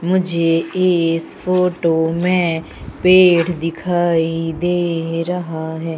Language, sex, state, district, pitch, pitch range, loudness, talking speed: Hindi, female, Madhya Pradesh, Umaria, 170 Hz, 165-180 Hz, -17 LUFS, 90 wpm